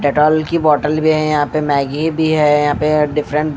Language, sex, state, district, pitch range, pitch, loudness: Hindi, male, Bihar, Katihar, 150-155 Hz, 150 Hz, -15 LUFS